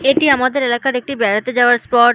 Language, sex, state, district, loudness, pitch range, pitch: Bengali, female, West Bengal, Malda, -15 LUFS, 240-270 Hz, 250 Hz